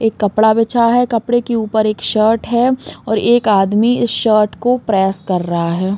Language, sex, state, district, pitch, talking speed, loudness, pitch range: Hindi, female, Uttar Pradesh, Varanasi, 220 Hz, 190 wpm, -14 LUFS, 205-240 Hz